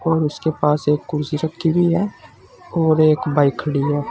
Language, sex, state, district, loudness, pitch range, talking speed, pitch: Hindi, male, Uttar Pradesh, Saharanpur, -19 LUFS, 150-160 Hz, 190 wpm, 155 Hz